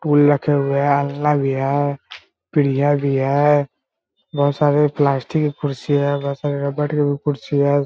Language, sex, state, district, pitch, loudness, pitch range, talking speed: Hindi, male, Bihar, Muzaffarpur, 145 Hz, -18 LUFS, 140-145 Hz, 155 wpm